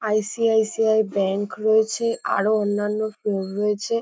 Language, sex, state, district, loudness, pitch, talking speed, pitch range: Bengali, female, West Bengal, North 24 Parganas, -22 LUFS, 215 Hz, 120 wpm, 205-220 Hz